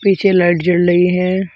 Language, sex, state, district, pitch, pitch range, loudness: Hindi, male, Uttar Pradesh, Shamli, 180 Hz, 175-190 Hz, -13 LUFS